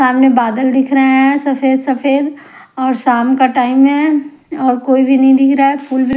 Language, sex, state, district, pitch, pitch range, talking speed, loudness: Hindi, female, Punjab, Kapurthala, 265 Hz, 260-275 Hz, 185 wpm, -12 LUFS